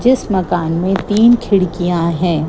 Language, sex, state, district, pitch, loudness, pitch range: Hindi, female, Gujarat, Gandhinagar, 180 Hz, -14 LUFS, 170-210 Hz